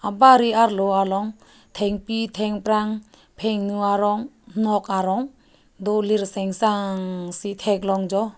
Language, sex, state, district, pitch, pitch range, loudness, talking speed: Karbi, female, Assam, Karbi Anglong, 205 Hz, 195-220 Hz, -22 LUFS, 100 wpm